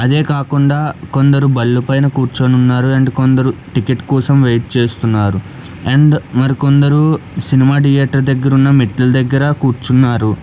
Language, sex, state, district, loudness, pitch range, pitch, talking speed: Telugu, male, Telangana, Hyderabad, -13 LUFS, 125-140 Hz, 135 Hz, 120 wpm